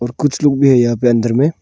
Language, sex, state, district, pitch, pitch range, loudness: Hindi, male, Arunachal Pradesh, Longding, 130 Hz, 120-145 Hz, -13 LUFS